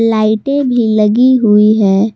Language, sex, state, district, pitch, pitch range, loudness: Hindi, female, Jharkhand, Palamu, 220 Hz, 210-245 Hz, -10 LUFS